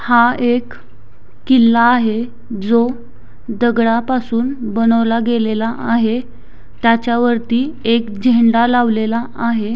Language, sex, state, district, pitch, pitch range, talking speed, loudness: Marathi, female, Maharashtra, Sindhudurg, 235 Hz, 230-240 Hz, 85 wpm, -15 LUFS